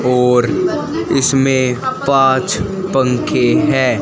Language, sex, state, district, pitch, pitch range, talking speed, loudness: Hindi, male, Haryana, Charkhi Dadri, 130 Hz, 125-135 Hz, 75 wpm, -14 LUFS